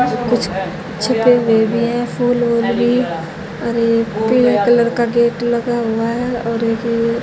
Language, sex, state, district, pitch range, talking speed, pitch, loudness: Hindi, female, Haryana, Jhajjar, 225-240 Hz, 165 wpm, 235 Hz, -16 LUFS